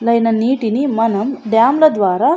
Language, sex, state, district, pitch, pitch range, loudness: Telugu, female, Andhra Pradesh, Anantapur, 230 Hz, 225-270 Hz, -14 LUFS